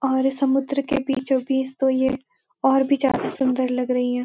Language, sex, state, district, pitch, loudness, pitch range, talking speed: Hindi, female, Uttarakhand, Uttarkashi, 265 Hz, -22 LUFS, 260-275 Hz, 200 wpm